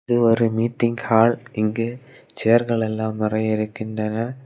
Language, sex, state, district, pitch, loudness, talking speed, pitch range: Tamil, male, Tamil Nadu, Kanyakumari, 115 Hz, -21 LUFS, 110 wpm, 110-120 Hz